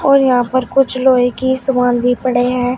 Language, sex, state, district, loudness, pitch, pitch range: Hindi, female, Uttar Pradesh, Shamli, -14 LUFS, 255 Hz, 245-260 Hz